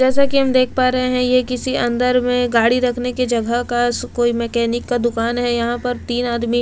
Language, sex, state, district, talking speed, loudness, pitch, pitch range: Hindi, female, Delhi, New Delhi, 225 wpm, -18 LUFS, 245 Hz, 240-250 Hz